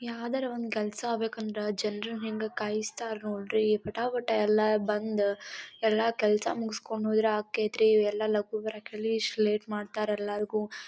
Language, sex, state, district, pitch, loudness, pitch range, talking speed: Kannada, female, Karnataka, Dharwad, 215 Hz, -30 LUFS, 210-220 Hz, 150 wpm